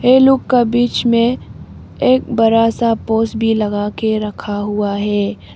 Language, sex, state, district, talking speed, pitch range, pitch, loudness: Hindi, female, Arunachal Pradesh, Papum Pare, 160 wpm, 205-240 Hz, 225 Hz, -15 LUFS